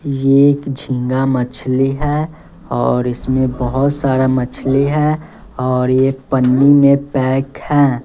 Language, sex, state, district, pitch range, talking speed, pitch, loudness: Hindi, male, Bihar, West Champaran, 130-140 Hz, 125 wpm, 135 Hz, -15 LUFS